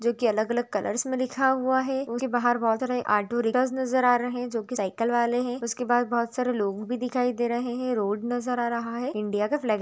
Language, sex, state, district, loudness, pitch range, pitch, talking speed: Hindi, female, Jharkhand, Sahebganj, -26 LUFS, 230-250 Hz, 240 Hz, 250 wpm